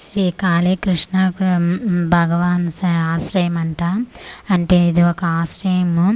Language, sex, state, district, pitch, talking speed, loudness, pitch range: Telugu, female, Andhra Pradesh, Manyam, 175 Hz, 95 wpm, -17 LUFS, 170-185 Hz